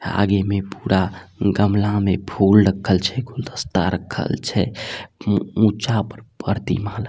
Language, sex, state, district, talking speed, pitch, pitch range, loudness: Maithili, male, Bihar, Samastipur, 125 wpm, 100 Hz, 95-110 Hz, -20 LUFS